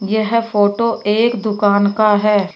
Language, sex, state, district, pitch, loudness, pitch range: Hindi, female, Uttar Pradesh, Shamli, 210 Hz, -15 LUFS, 205-225 Hz